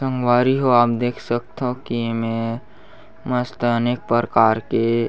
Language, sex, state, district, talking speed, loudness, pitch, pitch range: Chhattisgarhi, male, Chhattisgarh, Bastar, 155 wpm, -20 LUFS, 120 Hz, 115-125 Hz